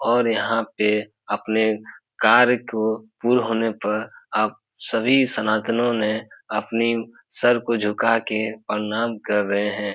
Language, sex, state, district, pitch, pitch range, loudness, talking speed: Hindi, male, Bihar, Supaul, 110 Hz, 105-115 Hz, -22 LUFS, 135 wpm